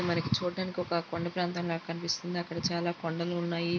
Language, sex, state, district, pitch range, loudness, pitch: Telugu, female, Andhra Pradesh, Guntur, 170-175 Hz, -32 LUFS, 170 Hz